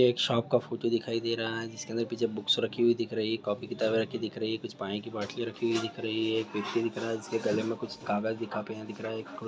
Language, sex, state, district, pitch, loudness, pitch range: Hindi, male, Bihar, Darbhanga, 115 Hz, -31 LUFS, 110-115 Hz